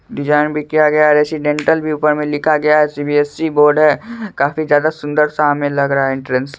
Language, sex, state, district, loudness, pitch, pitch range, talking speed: Hindi, male, Bihar, Supaul, -14 LUFS, 150 Hz, 145-155 Hz, 220 wpm